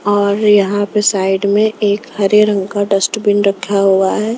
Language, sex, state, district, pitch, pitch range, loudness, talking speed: Hindi, female, Maharashtra, Mumbai Suburban, 205 Hz, 200-210 Hz, -13 LUFS, 205 wpm